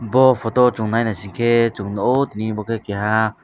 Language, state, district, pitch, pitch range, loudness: Kokborok, Tripura, West Tripura, 115 Hz, 105-120 Hz, -19 LUFS